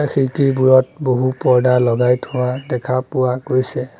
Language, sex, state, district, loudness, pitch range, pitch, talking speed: Assamese, male, Assam, Sonitpur, -16 LUFS, 125-130 Hz, 130 Hz, 135 wpm